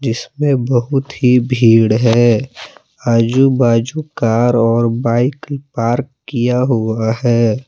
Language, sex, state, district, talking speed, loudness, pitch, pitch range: Hindi, male, Jharkhand, Palamu, 110 wpm, -14 LUFS, 120 Hz, 115-135 Hz